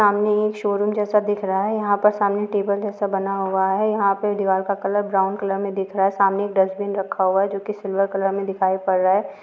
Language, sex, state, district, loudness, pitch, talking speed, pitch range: Hindi, female, Rajasthan, Nagaur, -21 LUFS, 200 Hz, 230 wpm, 195-205 Hz